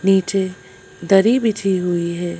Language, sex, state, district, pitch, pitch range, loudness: Hindi, female, Madhya Pradesh, Bhopal, 185 Hz, 175-195 Hz, -18 LUFS